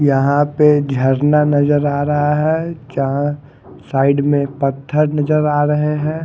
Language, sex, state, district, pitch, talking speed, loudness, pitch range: Hindi, male, Odisha, Khordha, 145 Hz, 145 wpm, -16 LUFS, 140-150 Hz